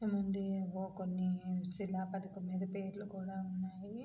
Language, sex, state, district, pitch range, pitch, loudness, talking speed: Telugu, female, Andhra Pradesh, Anantapur, 185-195 Hz, 190 Hz, -40 LUFS, 90 wpm